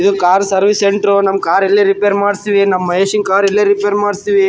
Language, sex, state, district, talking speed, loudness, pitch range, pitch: Kannada, male, Karnataka, Raichur, 200 wpm, -12 LUFS, 195-205 Hz, 200 Hz